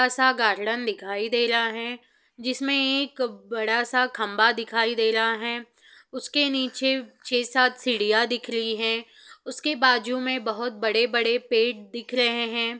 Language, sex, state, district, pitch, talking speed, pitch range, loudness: Hindi, female, Bihar, Saran, 235 Hz, 150 wpm, 225-255 Hz, -24 LUFS